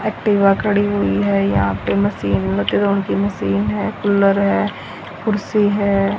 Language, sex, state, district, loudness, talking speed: Hindi, female, Haryana, Rohtak, -17 LUFS, 145 wpm